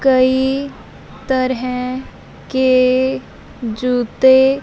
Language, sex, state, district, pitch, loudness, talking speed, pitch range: Hindi, female, Punjab, Fazilka, 260 Hz, -16 LUFS, 50 wpm, 255-265 Hz